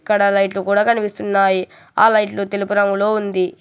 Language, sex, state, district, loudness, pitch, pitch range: Telugu, male, Telangana, Hyderabad, -17 LUFS, 200 Hz, 195-210 Hz